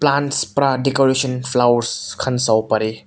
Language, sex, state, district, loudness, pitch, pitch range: Nagamese, male, Nagaland, Kohima, -18 LUFS, 130 Hz, 120-135 Hz